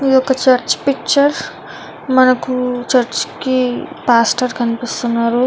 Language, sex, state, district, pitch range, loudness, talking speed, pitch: Telugu, female, Andhra Pradesh, Visakhapatnam, 240-260 Hz, -15 LUFS, 110 wpm, 255 Hz